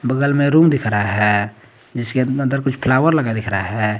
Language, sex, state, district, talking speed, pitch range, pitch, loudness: Hindi, male, Jharkhand, Garhwa, 210 wpm, 105-140 Hz, 120 Hz, -17 LUFS